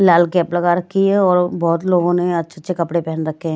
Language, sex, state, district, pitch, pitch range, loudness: Hindi, female, Maharashtra, Washim, 175 Hz, 170-180 Hz, -17 LUFS